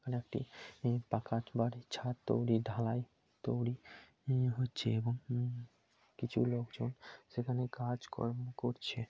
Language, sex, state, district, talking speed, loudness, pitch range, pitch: Bengali, male, West Bengal, Kolkata, 120 wpm, -38 LUFS, 115-125 Hz, 120 Hz